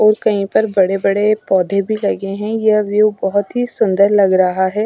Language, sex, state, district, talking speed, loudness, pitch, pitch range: Hindi, female, Maharashtra, Washim, 210 wpm, -15 LUFS, 205 Hz, 195-215 Hz